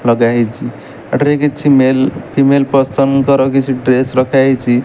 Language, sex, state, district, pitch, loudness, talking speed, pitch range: Odia, male, Odisha, Malkangiri, 135 Hz, -12 LUFS, 150 wpm, 125-140 Hz